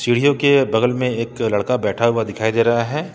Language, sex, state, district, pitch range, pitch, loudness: Hindi, male, Jharkhand, Ranchi, 115-125 Hz, 120 Hz, -18 LUFS